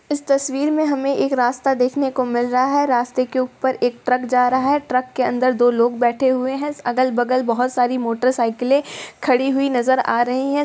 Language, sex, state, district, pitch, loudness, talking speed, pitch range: Hindi, female, Bihar, East Champaran, 255 Hz, -19 LUFS, 210 wpm, 245-270 Hz